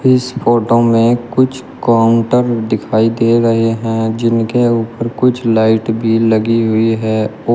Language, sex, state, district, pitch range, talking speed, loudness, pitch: Hindi, male, Uttar Pradesh, Shamli, 115-120 Hz, 145 wpm, -13 LUFS, 115 Hz